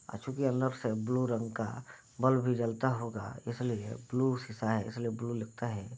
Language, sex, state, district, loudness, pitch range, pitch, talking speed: Hindi, male, Bihar, Bhagalpur, -34 LUFS, 110-125 Hz, 120 Hz, 180 wpm